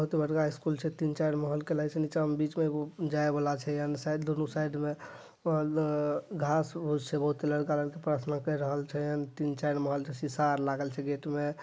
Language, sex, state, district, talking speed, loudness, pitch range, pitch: Maithili, male, Bihar, Madhepura, 215 wpm, -32 LUFS, 145-155 Hz, 150 Hz